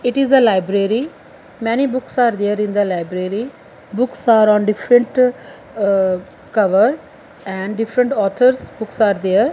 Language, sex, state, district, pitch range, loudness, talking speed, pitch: English, female, Punjab, Fazilka, 200-250 Hz, -16 LUFS, 145 wpm, 225 Hz